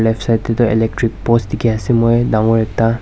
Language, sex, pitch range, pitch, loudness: Nagamese, male, 110-115 Hz, 115 Hz, -15 LUFS